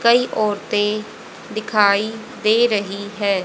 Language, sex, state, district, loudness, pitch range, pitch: Hindi, female, Haryana, Jhajjar, -19 LUFS, 205-220 Hz, 210 Hz